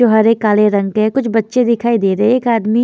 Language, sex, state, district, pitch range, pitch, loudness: Hindi, female, Punjab, Fazilka, 215-240 Hz, 225 Hz, -13 LUFS